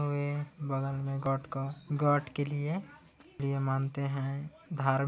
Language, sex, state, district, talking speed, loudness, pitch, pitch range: Hindi, male, Chhattisgarh, Kabirdham, 140 wpm, -33 LUFS, 140 Hz, 135-145 Hz